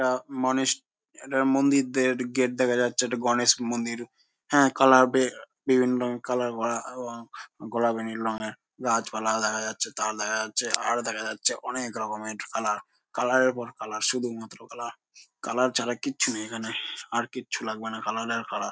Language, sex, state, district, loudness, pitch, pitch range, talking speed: Bengali, male, West Bengal, Jhargram, -26 LUFS, 120 Hz, 115-130 Hz, 195 wpm